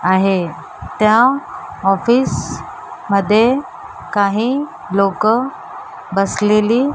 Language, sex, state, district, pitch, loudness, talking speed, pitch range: Marathi, female, Maharashtra, Mumbai Suburban, 215 Hz, -16 LUFS, 70 wpm, 195-260 Hz